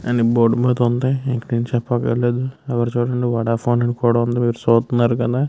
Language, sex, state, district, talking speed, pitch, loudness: Telugu, male, Andhra Pradesh, Krishna, 155 wpm, 120 Hz, -18 LUFS